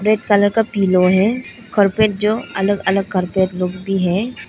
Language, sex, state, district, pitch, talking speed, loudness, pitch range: Hindi, female, Arunachal Pradesh, Lower Dibang Valley, 200 Hz, 175 wpm, -17 LUFS, 185-215 Hz